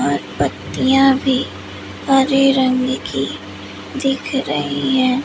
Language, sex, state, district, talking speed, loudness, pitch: Hindi, female, Madhya Pradesh, Umaria, 105 wpm, -17 LUFS, 255 Hz